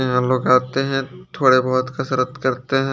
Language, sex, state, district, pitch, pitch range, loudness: Hindi, male, Chandigarh, Chandigarh, 130 Hz, 125-135 Hz, -19 LUFS